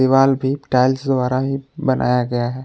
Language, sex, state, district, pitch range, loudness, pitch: Hindi, male, Jharkhand, Palamu, 125-135 Hz, -18 LUFS, 130 Hz